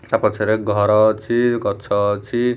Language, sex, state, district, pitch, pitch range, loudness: Odia, male, Odisha, Khordha, 110 Hz, 105-120 Hz, -18 LUFS